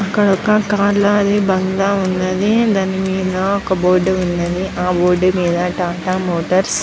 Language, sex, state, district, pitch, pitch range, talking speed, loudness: Telugu, female, Andhra Pradesh, Chittoor, 190 Hz, 180-200 Hz, 140 wpm, -16 LUFS